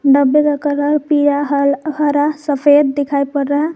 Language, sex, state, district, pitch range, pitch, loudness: Hindi, female, Jharkhand, Garhwa, 285-295 Hz, 290 Hz, -14 LUFS